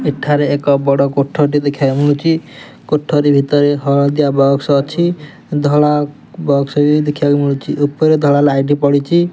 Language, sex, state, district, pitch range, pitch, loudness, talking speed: Odia, male, Odisha, Nuapada, 140-150 Hz, 145 Hz, -14 LUFS, 130 wpm